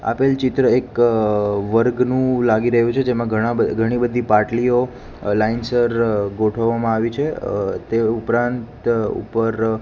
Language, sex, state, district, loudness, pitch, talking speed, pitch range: Gujarati, male, Gujarat, Gandhinagar, -19 LUFS, 115 Hz, 130 wpm, 110-120 Hz